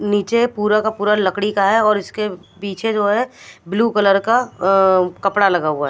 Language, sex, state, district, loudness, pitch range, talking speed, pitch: Hindi, female, Punjab, Fazilka, -17 LUFS, 195-215 Hz, 195 wpm, 205 Hz